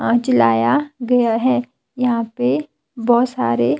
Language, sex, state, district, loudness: Hindi, female, Himachal Pradesh, Shimla, -18 LUFS